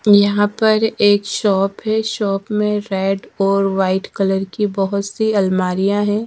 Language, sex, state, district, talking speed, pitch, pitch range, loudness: Hindi, female, Madhya Pradesh, Dhar, 155 wpm, 205 Hz, 195-210 Hz, -17 LUFS